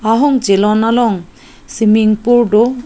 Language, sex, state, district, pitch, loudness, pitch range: Karbi, female, Assam, Karbi Anglong, 225 Hz, -12 LUFS, 215-240 Hz